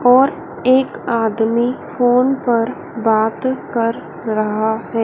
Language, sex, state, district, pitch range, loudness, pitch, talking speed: Hindi, female, Madhya Pradesh, Dhar, 225-255 Hz, -17 LUFS, 235 Hz, 105 wpm